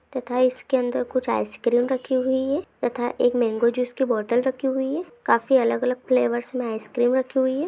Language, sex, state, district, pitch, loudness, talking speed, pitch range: Hindi, female, Jharkhand, Sahebganj, 250 Hz, -23 LUFS, 220 wpm, 240-260 Hz